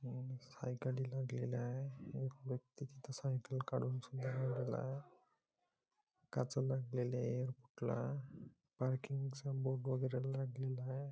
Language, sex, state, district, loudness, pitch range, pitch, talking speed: Marathi, male, Maharashtra, Nagpur, -43 LUFS, 125-135 Hz, 130 Hz, 110 wpm